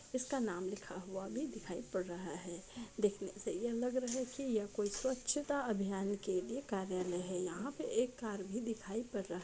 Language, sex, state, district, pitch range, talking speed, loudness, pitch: Hindi, female, Jharkhand, Sahebganj, 190-250 Hz, 195 wpm, -40 LUFS, 210 Hz